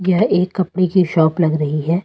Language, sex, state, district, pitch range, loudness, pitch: Hindi, female, Delhi, New Delhi, 160-185 Hz, -16 LUFS, 180 Hz